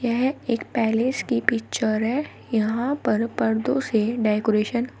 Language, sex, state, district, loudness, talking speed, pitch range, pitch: Hindi, female, Uttar Pradesh, Shamli, -23 LUFS, 145 wpm, 220-250 Hz, 230 Hz